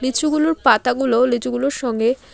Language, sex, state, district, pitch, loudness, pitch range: Bengali, female, West Bengal, Alipurduar, 255 Hz, -18 LUFS, 245-275 Hz